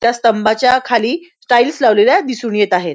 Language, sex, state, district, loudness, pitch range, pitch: Marathi, female, Maharashtra, Nagpur, -13 LUFS, 220-255 Hz, 235 Hz